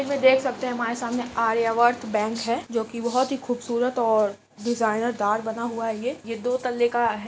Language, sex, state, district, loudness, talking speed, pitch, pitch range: Hindi, female, Uttar Pradesh, Etah, -24 LUFS, 215 wpm, 235 Hz, 225-245 Hz